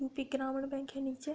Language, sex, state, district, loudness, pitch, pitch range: Hindi, female, Uttar Pradesh, Budaun, -38 LUFS, 270 Hz, 270-275 Hz